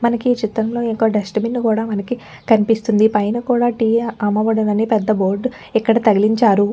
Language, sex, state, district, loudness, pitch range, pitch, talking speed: Telugu, female, Telangana, Nalgonda, -17 LUFS, 210-235 Hz, 220 Hz, 160 wpm